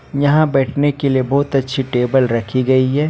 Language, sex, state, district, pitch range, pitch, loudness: Hindi, male, Jharkhand, Ranchi, 130-145 Hz, 135 Hz, -16 LUFS